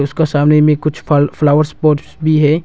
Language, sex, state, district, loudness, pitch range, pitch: Hindi, male, Arunachal Pradesh, Longding, -13 LUFS, 145-155 Hz, 150 Hz